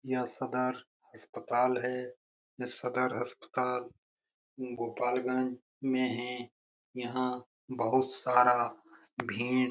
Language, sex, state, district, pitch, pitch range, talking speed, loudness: Hindi, male, Bihar, Jamui, 125 Hz, 125-130 Hz, 95 wpm, -33 LUFS